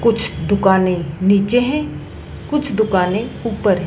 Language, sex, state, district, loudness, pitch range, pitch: Hindi, male, Madhya Pradesh, Dhar, -17 LUFS, 185-230 Hz, 200 Hz